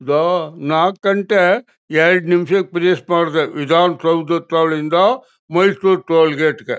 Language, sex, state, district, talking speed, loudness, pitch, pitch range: Kannada, male, Karnataka, Mysore, 140 wpm, -16 LUFS, 170 Hz, 160-185 Hz